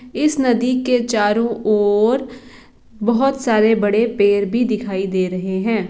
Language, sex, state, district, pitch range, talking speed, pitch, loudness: Hindi, female, Bihar, East Champaran, 205-245 Hz, 140 wpm, 225 Hz, -17 LUFS